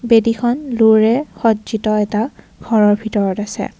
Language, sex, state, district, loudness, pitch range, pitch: Assamese, female, Assam, Kamrup Metropolitan, -16 LUFS, 210-230 Hz, 220 Hz